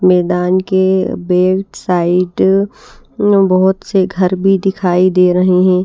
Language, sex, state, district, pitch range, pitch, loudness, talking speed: Hindi, female, Bihar, Patna, 180-190 Hz, 185 Hz, -13 LUFS, 125 wpm